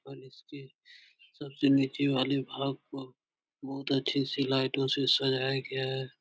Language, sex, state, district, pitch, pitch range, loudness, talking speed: Hindi, male, Uttar Pradesh, Etah, 135 Hz, 130-140 Hz, -30 LUFS, 145 wpm